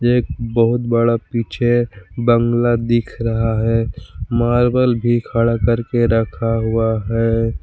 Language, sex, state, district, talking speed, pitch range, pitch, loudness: Hindi, male, Jharkhand, Palamu, 120 wpm, 115-120 Hz, 115 Hz, -17 LUFS